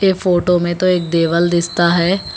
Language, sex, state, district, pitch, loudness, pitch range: Hindi, female, Telangana, Hyderabad, 175 Hz, -15 LUFS, 170-185 Hz